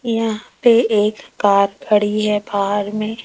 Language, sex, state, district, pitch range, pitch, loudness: Hindi, female, Rajasthan, Jaipur, 205-225 Hz, 210 Hz, -17 LUFS